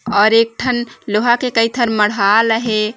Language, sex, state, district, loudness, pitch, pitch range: Chhattisgarhi, female, Chhattisgarh, Raigarh, -15 LUFS, 225 Hz, 215-240 Hz